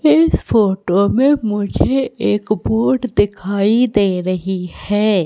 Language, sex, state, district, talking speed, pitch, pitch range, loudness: Hindi, female, Madhya Pradesh, Katni, 115 wpm, 210 Hz, 195-245 Hz, -16 LUFS